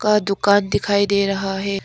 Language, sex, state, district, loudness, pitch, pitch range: Hindi, female, Arunachal Pradesh, Lower Dibang Valley, -18 LUFS, 200 Hz, 195-200 Hz